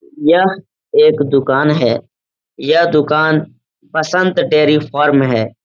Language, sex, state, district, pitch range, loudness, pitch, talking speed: Hindi, male, Uttar Pradesh, Etah, 135-180 Hz, -13 LUFS, 150 Hz, 105 wpm